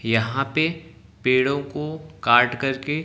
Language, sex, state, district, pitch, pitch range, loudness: Hindi, male, Haryana, Jhajjar, 135 Hz, 120-155 Hz, -22 LUFS